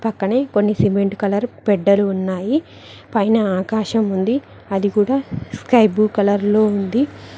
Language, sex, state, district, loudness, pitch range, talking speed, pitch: Telugu, female, Telangana, Mahabubabad, -18 LUFS, 200-225 Hz, 120 wpm, 210 Hz